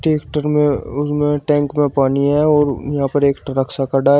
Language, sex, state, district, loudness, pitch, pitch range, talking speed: Hindi, male, Uttar Pradesh, Shamli, -17 LUFS, 145 Hz, 140-150 Hz, 230 wpm